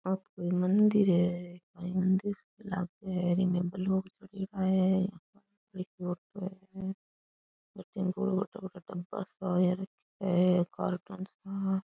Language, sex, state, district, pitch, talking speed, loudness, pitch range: Rajasthani, female, Rajasthan, Churu, 190 Hz, 75 wpm, -32 LUFS, 180-195 Hz